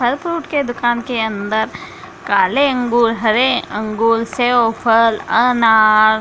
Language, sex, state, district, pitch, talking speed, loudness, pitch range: Hindi, female, Bihar, Samastipur, 230 Hz, 125 wpm, -15 LUFS, 220-245 Hz